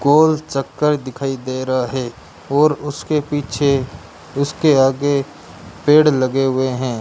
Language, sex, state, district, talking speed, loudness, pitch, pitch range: Hindi, male, Rajasthan, Bikaner, 130 wpm, -17 LUFS, 140 Hz, 130-145 Hz